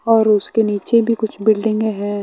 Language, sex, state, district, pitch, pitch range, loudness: Hindi, male, Bihar, West Champaran, 220 Hz, 205-225 Hz, -17 LUFS